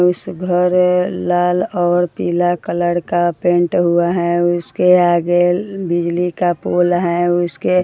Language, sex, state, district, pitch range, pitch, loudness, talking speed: Hindi, female, Bihar, Jahanabad, 175-180 Hz, 175 Hz, -16 LUFS, 140 wpm